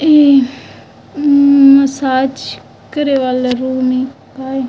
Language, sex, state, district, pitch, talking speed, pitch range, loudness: Chhattisgarhi, female, Chhattisgarh, Raigarh, 270 Hz, 100 wpm, 260-280 Hz, -12 LUFS